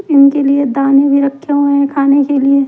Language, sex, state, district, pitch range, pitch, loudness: Hindi, male, Delhi, New Delhi, 275-285 Hz, 280 Hz, -11 LUFS